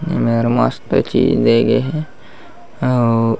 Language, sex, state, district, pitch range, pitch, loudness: Chhattisgarhi, male, Chhattisgarh, Bastar, 115-130 Hz, 120 Hz, -16 LUFS